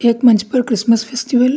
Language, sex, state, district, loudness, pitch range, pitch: Hindi, male, Uttarakhand, Tehri Garhwal, -15 LUFS, 230-250 Hz, 240 Hz